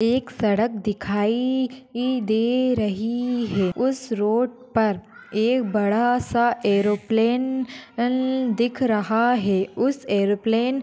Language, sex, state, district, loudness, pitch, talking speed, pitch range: Hindi, female, Maharashtra, Pune, -22 LUFS, 235 Hz, 105 wpm, 215-250 Hz